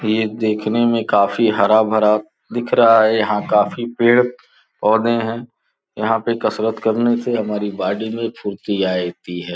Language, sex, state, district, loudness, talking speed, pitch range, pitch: Hindi, male, Uttar Pradesh, Gorakhpur, -17 LUFS, 165 wpm, 105-115 Hz, 110 Hz